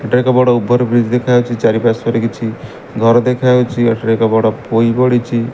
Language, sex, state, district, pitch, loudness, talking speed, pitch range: Odia, male, Odisha, Malkangiri, 120 Hz, -13 LUFS, 175 wpm, 115-125 Hz